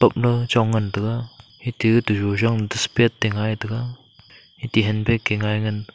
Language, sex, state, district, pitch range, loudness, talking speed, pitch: Wancho, male, Arunachal Pradesh, Longding, 105-120 Hz, -21 LUFS, 150 wpm, 110 Hz